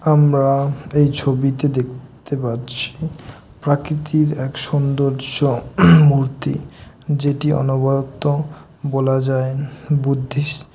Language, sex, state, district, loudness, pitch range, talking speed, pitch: Bengali, male, West Bengal, Dakshin Dinajpur, -18 LUFS, 135-150 Hz, 85 wpm, 140 Hz